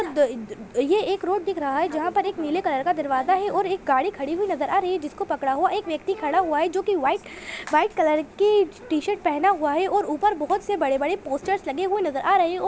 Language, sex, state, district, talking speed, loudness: Hindi, female, Bihar, Sitamarhi, 270 wpm, -23 LUFS